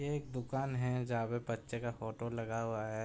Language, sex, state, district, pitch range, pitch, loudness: Hindi, male, Uttar Pradesh, Budaun, 115-125 Hz, 120 Hz, -39 LUFS